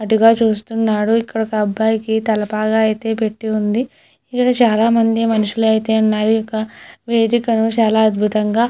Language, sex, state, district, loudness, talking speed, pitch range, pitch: Telugu, female, Andhra Pradesh, Chittoor, -16 LUFS, 125 wpm, 215-225 Hz, 220 Hz